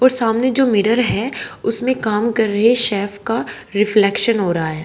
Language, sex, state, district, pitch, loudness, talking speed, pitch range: Hindi, female, Haryana, Charkhi Dadri, 225 Hz, -17 LUFS, 200 wpm, 205-235 Hz